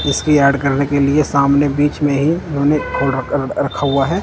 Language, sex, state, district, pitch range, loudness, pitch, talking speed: Hindi, male, Punjab, Kapurthala, 140-150 Hz, -15 LUFS, 145 Hz, 185 wpm